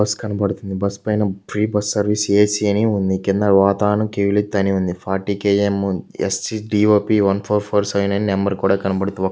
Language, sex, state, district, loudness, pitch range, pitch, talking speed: Telugu, male, Andhra Pradesh, Krishna, -18 LUFS, 100-105 Hz, 100 Hz, 160 wpm